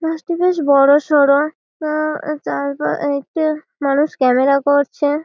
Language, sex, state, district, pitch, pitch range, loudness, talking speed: Bengali, female, West Bengal, Malda, 290 Hz, 280-310 Hz, -16 LUFS, 115 wpm